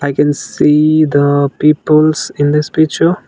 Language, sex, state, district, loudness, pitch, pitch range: English, male, Nagaland, Dimapur, -12 LUFS, 150 Hz, 145-155 Hz